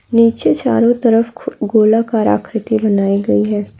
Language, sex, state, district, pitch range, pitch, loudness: Hindi, female, Bihar, Araria, 195-230 Hz, 220 Hz, -14 LUFS